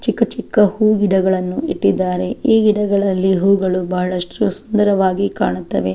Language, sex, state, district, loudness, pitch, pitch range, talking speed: Kannada, female, Karnataka, Chamarajanagar, -16 LUFS, 195 Hz, 185-210 Hz, 100 wpm